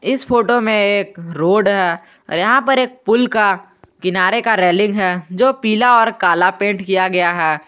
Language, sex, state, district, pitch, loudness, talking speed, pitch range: Hindi, male, Jharkhand, Garhwa, 200 Hz, -15 LUFS, 190 wpm, 180-230 Hz